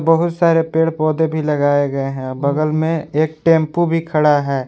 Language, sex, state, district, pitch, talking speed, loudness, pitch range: Hindi, male, Jharkhand, Garhwa, 155 Hz, 190 wpm, -16 LUFS, 145-165 Hz